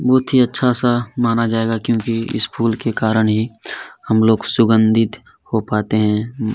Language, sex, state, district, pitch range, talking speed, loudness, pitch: Hindi, male, Chhattisgarh, Kabirdham, 110-120 Hz, 155 wpm, -17 LUFS, 115 Hz